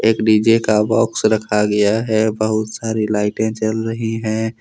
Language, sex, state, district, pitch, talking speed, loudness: Hindi, male, Jharkhand, Deoghar, 110 Hz, 170 wpm, -17 LUFS